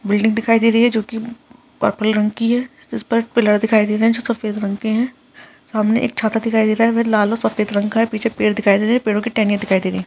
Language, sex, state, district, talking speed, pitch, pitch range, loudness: Hindi, male, Bihar, Gaya, 300 wpm, 225 Hz, 210-230 Hz, -17 LUFS